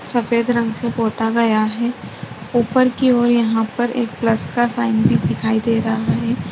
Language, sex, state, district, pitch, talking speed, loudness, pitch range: Hindi, female, Bihar, Saharsa, 235 Hz, 175 wpm, -17 LUFS, 225-240 Hz